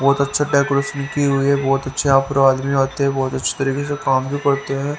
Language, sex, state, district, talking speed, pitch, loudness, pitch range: Hindi, male, Haryana, Rohtak, 255 wpm, 140 Hz, -18 LUFS, 135-140 Hz